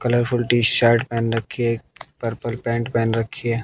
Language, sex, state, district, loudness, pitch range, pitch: Hindi, male, Haryana, Jhajjar, -21 LUFS, 115-120 Hz, 115 Hz